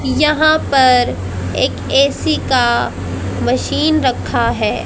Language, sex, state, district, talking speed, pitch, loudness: Hindi, female, Haryana, Charkhi Dadri, 100 wpm, 255 Hz, -15 LUFS